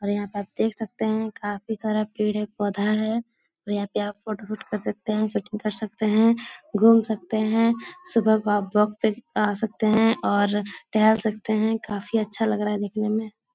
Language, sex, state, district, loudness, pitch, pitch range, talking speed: Hindi, female, Bihar, Jahanabad, -24 LUFS, 215 Hz, 205-220 Hz, 210 wpm